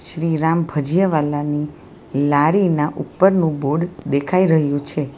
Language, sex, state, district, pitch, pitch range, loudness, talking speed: Gujarati, female, Gujarat, Valsad, 155 Hz, 145-170 Hz, -18 LUFS, 90 wpm